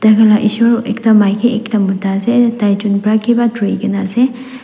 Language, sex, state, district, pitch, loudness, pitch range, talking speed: Nagamese, female, Nagaland, Dimapur, 220 Hz, -13 LUFS, 205-235 Hz, 180 wpm